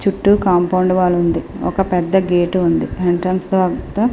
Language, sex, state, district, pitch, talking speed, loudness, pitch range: Telugu, female, Andhra Pradesh, Srikakulam, 185 Hz, 160 wpm, -16 LUFS, 175-190 Hz